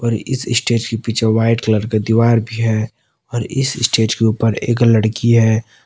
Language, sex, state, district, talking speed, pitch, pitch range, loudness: Hindi, male, Jharkhand, Palamu, 195 wpm, 115 Hz, 110-120 Hz, -16 LUFS